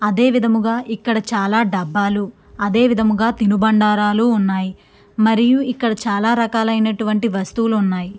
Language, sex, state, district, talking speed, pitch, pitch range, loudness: Telugu, female, Andhra Pradesh, Krishna, 125 wpm, 220 Hz, 205-230 Hz, -17 LUFS